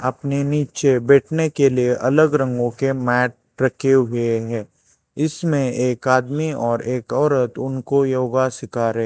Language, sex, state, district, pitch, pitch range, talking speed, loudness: Hindi, male, Chhattisgarh, Raipur, 130 Hz, 125-140 Hz, 145 wpm, -19 LUFS